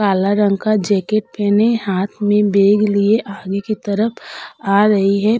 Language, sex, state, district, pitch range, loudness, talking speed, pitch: Hindi, female, Uttar Pradesh, Hamirpur, 200-215 Hz, -16 LUFS, 165 wpm, 205 Hz